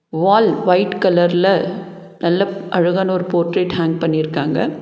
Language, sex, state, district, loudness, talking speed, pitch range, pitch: Tamil, female, Tamil Nadu, Nilgiris, -16 LUFS, 125 wpm, 170-190 Hz, 180 Hz